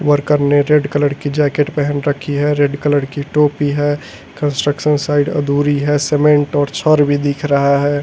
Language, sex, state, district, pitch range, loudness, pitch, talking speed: Hindi, male, Delhi, New Delhi, 145-150 Hz, -15 LUFS, 145 Hz, 185 wpm